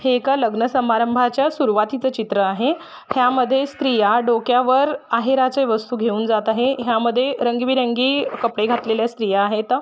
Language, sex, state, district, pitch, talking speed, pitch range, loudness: Marathi, female, Maharashtra, Solapur, 245 Hz, 130 wpm, 225-260 Hz, -19 LUFS